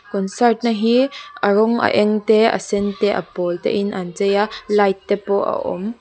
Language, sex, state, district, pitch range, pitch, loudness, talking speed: Mizo, female, Mizoram, Aizawl, 200-225 Hz, 205 Hz, -18 LUFS, 230 wpm